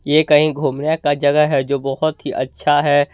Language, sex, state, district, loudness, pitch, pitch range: Hindi, male, Jharkhand, Deoghar, -17 LUFS, 145 Hz, 140-155 Hz